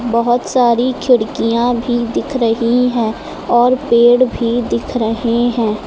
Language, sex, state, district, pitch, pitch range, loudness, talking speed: Hindi, female, Uttar Pradesh, Lucknow, 240 Hz, 230-245 Hz, -14 LUFS, 135 wpm